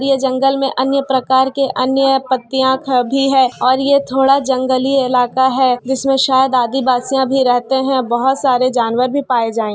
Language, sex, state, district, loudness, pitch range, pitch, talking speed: Hindi, female, Bihar, Kishanganj, -14 LUFS, 255-270 Hz, 260 Hz, 180 wpm